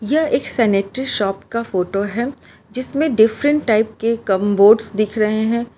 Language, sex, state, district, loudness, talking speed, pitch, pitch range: Hindi, female, Gujarat, Valsad, -17 LUFS, 165 wpm, 220 Hz, 205-255 Hz